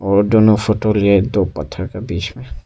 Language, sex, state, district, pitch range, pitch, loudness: Hindi, male, Arunachal Pradesh, Papum Pare, 95-110 Hz, 100 Hz, -16 LUFS